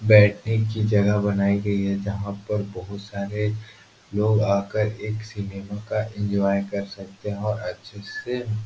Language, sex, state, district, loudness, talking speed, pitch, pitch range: Hindi, male, Uttar Pradesh, Etah, -24 LUFS, 165 wpm, 105 Hz, 100-110 Hz